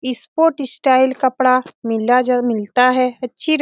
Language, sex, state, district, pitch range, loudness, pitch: Hindi, female, Bihar, Saran, 250-260 Hz, -16 LUFS, 255 Hz